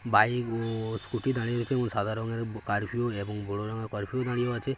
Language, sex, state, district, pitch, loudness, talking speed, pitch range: Bengali, male, West Bengal, Paschim Medinipur, 115 Hz, -30 LUFS, 190 wpm, 105-120 Hz